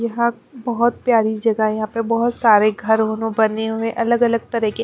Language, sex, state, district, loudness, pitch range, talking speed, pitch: Hindi, female, Bihar, Patna, -18 LUFS, 220-235 Hz, 210 wpm, 230 Hz